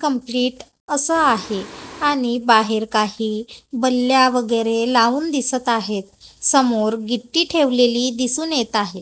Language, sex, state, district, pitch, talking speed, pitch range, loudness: Marathi, female, Maharashtra, Gondia, 245 Hz, 115 wpm, 225-275 Hz, -18 LUFS